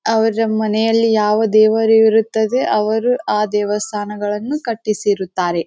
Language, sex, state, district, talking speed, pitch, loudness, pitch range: Kannada, female, Karnataka, Bijapur, 95 wpm, 215 Hz, -16 LUFS, 210-225 Hz